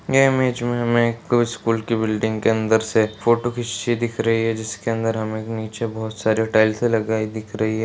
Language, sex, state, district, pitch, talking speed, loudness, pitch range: Hindi, male, Uttarakhand, Uttarkashi, 115 Hz, 215 wpm, -21 LUFS, 110-120 Hz